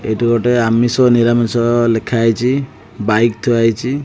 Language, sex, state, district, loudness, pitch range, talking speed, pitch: Odia, male, Odisha, Khordha, -14 LUFS, 115-120 Hz, 150 wpm, 115 Hz